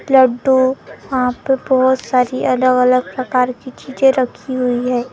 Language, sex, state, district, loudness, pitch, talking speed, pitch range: Hindi, female, Maharashtra, Gondia, -15 LUFS, 255 Hz, 165 wpm, 250-260 Hz